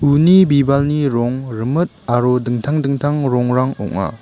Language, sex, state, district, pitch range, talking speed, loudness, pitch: Garo, male, Meghalaya, West Garo Hills, 125-145 Hz, 130 wpm, -16 LUFS, 140 Hz